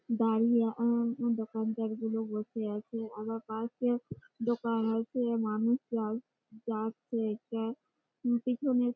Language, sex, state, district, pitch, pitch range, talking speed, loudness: Bengali, female, West Bengal, Malda, 225 Hz, 220-240 Hz, 105 wpm, -33 LUFS